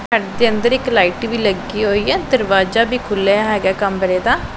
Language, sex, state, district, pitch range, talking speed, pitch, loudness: Punjabi, female, Punjab, Pathankot, 195-235 Hz, 210 wpm, 210 Hz, -16 LUFS